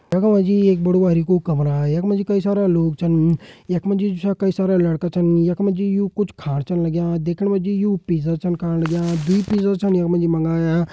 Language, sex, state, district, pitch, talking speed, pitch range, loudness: Hindi, male, Uttarakhand, Uttarkashi, 175 Hz, 220 wpm, 165-195 Hz, -19 LUFS